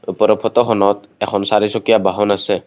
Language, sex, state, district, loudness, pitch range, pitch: Assamese, male, Assam, Kamrup Metropolitan, -15 LUFS, 100-110 Hz, 105 Hz